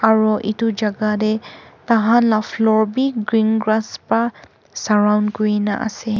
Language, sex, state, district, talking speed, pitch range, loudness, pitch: Nagamese, female, Nagaland, Kohima, 135 wpm, 210-225 Hz, -18 LUFS, 220 Hz